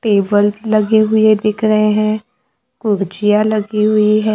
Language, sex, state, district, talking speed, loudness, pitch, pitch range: Hindi, male, Maharashtra, Gondia, 125 wpm, -14 LUFS, 215 Hz, 210-215 Hz